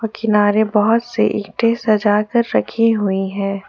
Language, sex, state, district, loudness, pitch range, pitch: Hindi, female, Jharkhand, Ranchi, -17 LUFS, 205-225 Hz, 215 Hz